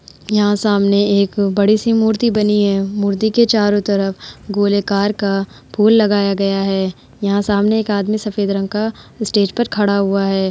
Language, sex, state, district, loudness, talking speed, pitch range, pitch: Hindi, female, Uttar Pradesh, Hamirpur, -16 LUFS, 165 wpm, 200-215 Hz, 205 Hz